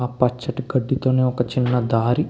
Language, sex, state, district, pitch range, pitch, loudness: Telugu, male, Andhra Pradesh, Krishna, 125-130 Hz, 125 Hz, -21 LUFS